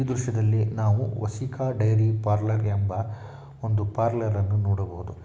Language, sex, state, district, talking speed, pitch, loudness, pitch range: Kannada, male, Karnataka, Shimoga, 125 wpm, 110 Hz, -25 LUFS, 105-115 Hz